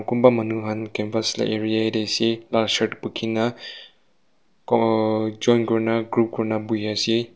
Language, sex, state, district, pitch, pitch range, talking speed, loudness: Nagamese, male, Nagaland, Kohima, 110 Hz, 110-115 Hz, 140 wpm, -22 LUFS